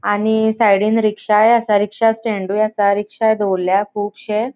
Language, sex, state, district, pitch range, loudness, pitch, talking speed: Konkani, female, Goa, North and South Goa, 205-220 Hz, -16 LUFS, 210 Hz, 130 wpm